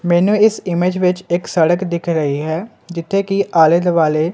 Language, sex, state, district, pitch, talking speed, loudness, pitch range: Punjabi, male, Punjab, Kapurthala, 175 Hz, 180 wpm, -16 LUFS, 165-185 Hz